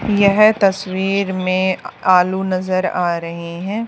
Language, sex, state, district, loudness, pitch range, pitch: Hindi, female, Haryana, Charkhi Dadri, -17 LUFS, 185-200 Hz, 190 Hz